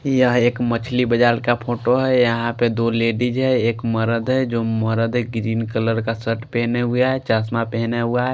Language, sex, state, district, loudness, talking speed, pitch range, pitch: Hindi, male, Bihar, Kaimur, -19 LUFS, 210 wpm, 115-125 Hz, 120 Hz